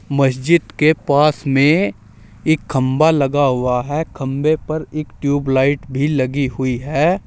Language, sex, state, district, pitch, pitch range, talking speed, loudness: Hindi, male, Uttar Pradesh, Saharanpur, 140 Hz, 130-155 Hz, 150 wpm, -17 LUFS